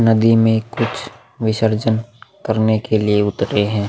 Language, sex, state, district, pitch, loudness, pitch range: Hindi, male, Uttar Pradesh, Muzaffarnagar, 110 Hz, -17 LUFS, 105-115 Hz